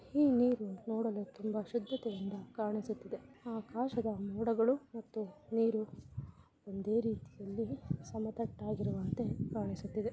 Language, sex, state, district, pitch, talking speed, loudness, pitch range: Kannada, female, Karnataka, Bijapur, 220 Hz, 95 wpm, -37 LUFS, 200-230 Hz